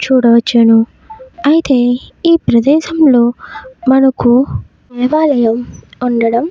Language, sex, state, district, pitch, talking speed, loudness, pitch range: Telugu, female, Karnataka, Bellary, 255 Hz, 75 wpm, -11 LUFS, 240-310 Hz